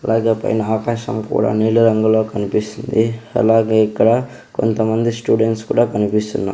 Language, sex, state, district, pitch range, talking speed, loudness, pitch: Telugu, male, Andhra Pradesh, Sri Satya Sai, 110-115 Hz, 110 wpm, -17 LUFS, 110 Hz